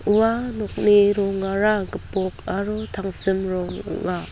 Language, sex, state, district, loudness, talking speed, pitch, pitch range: Garo, female, Meghalaya, West Garo Hills, -20 LUFS, 110 wpm, 200 Hz, 190-210 Hz